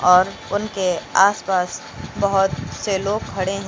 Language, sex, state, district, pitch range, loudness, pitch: Hindi, female, Uttar Pradesh, Lucknow, 185-200 Hz, -20 LUFS, 195 Hz